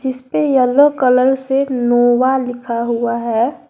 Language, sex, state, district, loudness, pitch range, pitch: Hindi, female, Jharkhand, Garhwa, -15 LUFS, 240-265 Hz, 255 Hz